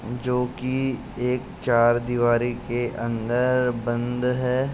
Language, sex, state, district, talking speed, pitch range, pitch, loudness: Hindi, male, Uttar Pradesh, Jalaun, 100 wpm, 120-125 Hz, 125 Hz, -24 LUFS